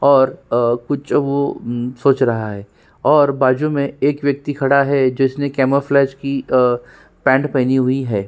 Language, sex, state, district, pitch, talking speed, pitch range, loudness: Hindi, male, Uttarakhand, Tehri Garhwal, 135 Hz, 150 wpm, 125-140 Hz, -17 LUFS